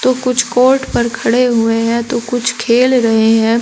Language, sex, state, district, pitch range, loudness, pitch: Hindi, female, Uttar Pradesh, Shamli, 230-250 Hz, -13 LUFS, 235 Hz